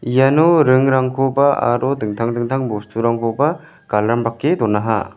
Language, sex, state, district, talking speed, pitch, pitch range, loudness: Garo, male, Meghalaya, West Garo Hills, 95 wpm, 120 Hz, 115-135 Hz, -17 LUFS